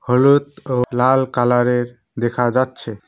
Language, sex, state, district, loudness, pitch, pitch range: Bengali, male, West Bengal, Cooch Behar, -17 LUFS, 125 Hz, 120-130 Hz